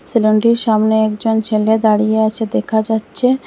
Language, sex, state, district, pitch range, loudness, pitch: Bengali, female, Assam, Hailakandi, 215-225 Hz, -15 LUFS, 220 Hz